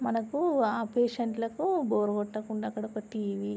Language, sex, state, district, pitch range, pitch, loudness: Telugu, female, Andhra Pradesh, Srikakulam, 215-240 Hz, 225 Hz, -30 LUFS